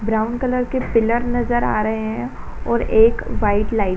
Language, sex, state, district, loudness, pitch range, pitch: Hindi, female, Bihar, Saran, -19 LUFS, 220-240 Hz, 225 Hz